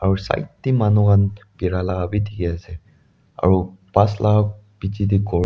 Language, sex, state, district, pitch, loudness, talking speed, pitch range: Nagamese, male, Nagaland, Dimapur, 100 Hz, -20 LUFS, 175 wpm, 90-105 Hz